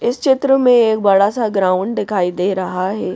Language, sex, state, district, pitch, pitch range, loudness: Hindi, female, Madhya Pradesh, Bhopal, 205 Hz, 185-240 Hz, -15 LUFS